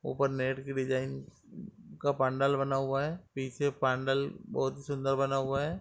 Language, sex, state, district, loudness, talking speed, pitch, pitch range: Hindi, male, Uttar Pradesh, Etah, -32 LUFS, 165 wpm, 135 Hz, 130-140 Hz